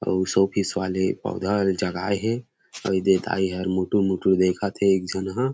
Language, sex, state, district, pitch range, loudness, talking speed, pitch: Chhattisgarhi, male, Chhattisgarh, Rajnandgaon, 95-100 Hz, -23 LUFS, 185 wpm, 95 Hz